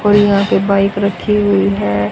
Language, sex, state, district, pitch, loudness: Hindi, female, Haryana, Jhajjar, 200 Hz, -13 LUFS